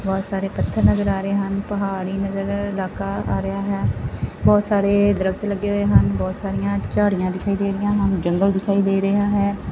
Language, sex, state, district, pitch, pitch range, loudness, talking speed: Punjabi, female, Punjab, Fazilka, 195 Hz, 125-200 Hz, -20 LUFS, 190 wpm